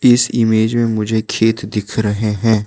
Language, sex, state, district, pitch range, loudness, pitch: Hindi, male, Arunachal Pradesh, Lower Dibang Valley, 105-115 Hz, -16 LUFS, 110 Hz